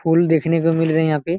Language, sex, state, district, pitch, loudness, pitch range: Hindi, male, Bihar, Araria, 165 Hz, -17 LUFS, 160-165 Hz